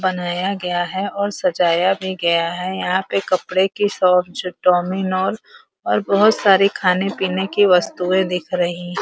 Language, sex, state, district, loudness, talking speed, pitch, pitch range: Hindi, female, Uttar Pradesh, Varanasi, -18 LUFS, 165 wpm, 185 Hz, 180-195 Hz